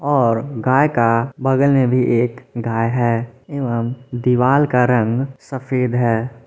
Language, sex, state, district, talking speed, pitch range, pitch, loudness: Hindi, male, Jharkhand, Palamu, 140 wpm, 115-135 Hz, 125 Hz, -17 LUFS